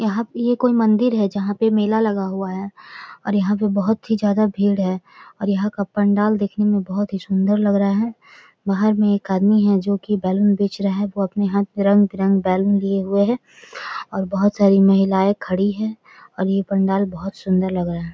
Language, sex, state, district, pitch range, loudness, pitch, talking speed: Maithili, female, Bihar, Samastipur, 195-210 Hz, -19 LUFS, 200 Hz, 225 wpm